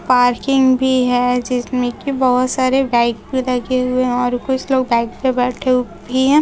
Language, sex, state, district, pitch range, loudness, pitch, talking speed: Hindi, female, Chhattisgarh, Raipur, 245-260 Hz, -16 LUFS, 255 Hz, 180 wpm